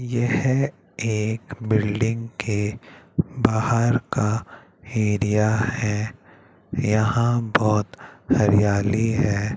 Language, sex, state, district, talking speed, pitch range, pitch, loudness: Hindi, male, Chandigarh, Chandigarh, 75 wpm, 105-120 Hz, 110 Hz, -22 LUFS